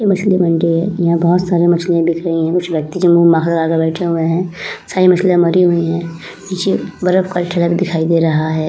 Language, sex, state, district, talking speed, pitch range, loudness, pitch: Hindi, female, Uttar Pradesh, Muzaffarnagar, 235 wpm, 165-180 Hz, -14 LUFS, 170 Hz